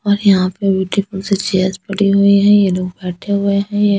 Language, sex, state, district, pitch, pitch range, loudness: Hindi, female, Delhi, New Delhi, 200 Hz, 190-200 Hz, -15 LUFS